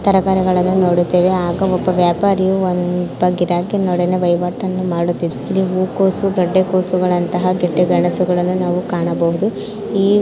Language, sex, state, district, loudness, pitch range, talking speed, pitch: Kannada, female, Karnataka, Mysore, -16 LUFS, 175-190 Hz, 95 wpm, 180 Hz